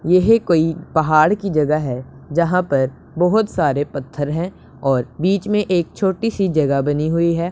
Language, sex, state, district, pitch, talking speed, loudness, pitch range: Hindi, male, Punjab, Pathankot, 165 Hz, 175 wpm, -18 LUFS, 145-185 Hz